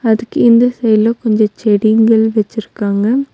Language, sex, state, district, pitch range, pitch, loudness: Tamil, female, Tamil Nadu, Nilgiris, 215-235 Hz, 220 Hz, -12 LUFS